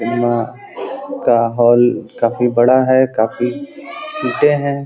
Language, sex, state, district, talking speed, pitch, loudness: Hindi, male, Uttar Pradesh, Gorakhpur, 110 wpm, 125 Hz, -15 LUFS